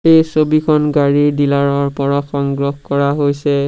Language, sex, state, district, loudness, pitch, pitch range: Assamese, male, Assam, Sonitpur, -14 LUFS, 140 Hz, 140-150 Hz